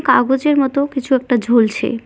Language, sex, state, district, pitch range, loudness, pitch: Bengali, female, West Bengal, Cooch Behar, 240-275 Hz, -15 LUFS, 265 Hz